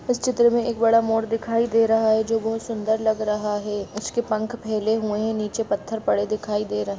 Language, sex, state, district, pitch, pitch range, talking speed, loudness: Angika, female, Bihar, Madhepura, 220 Hz, 210-225 Hz, 240 wpm, -23 LUFS